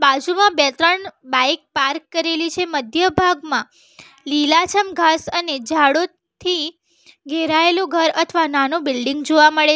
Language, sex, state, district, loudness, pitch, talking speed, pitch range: Gujarati, female, Gujarat, Valsad, -17 LUFS, 325 Hz, 140 wpm, 290-345 Hz